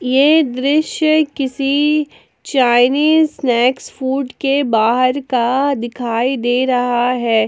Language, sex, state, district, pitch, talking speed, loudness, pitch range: Hindi, female, Jharkhand, Palamu, 260 Hz, 105 wpm, -15 LUFS, 245-285 Hz